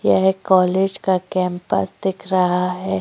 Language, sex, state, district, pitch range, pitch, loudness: Hindi, female, Uttar Pradesh, Jyotiba Phule Nagar, 180-190 Hz, 185 Hz, -19 LUFS